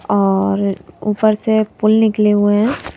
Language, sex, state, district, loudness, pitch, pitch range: Hindi, female, Madhya Pradesh, Bhopal, -15 LUFS, 210 Hz, 200-215 Hz